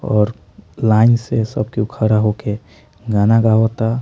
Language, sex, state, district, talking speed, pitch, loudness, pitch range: Bhojpuri, male, Bihar, Muzaffarpur, 135 wpm, 110 Hz, -16 LUFS, 105-115 Hz